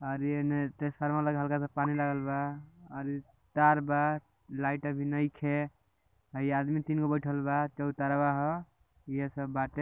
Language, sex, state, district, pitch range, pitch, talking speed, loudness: Bhojpuri, male, Bihar, Gopalganj, 140-145 Hz, 145 Hz, 190 wpm, -32 LUFS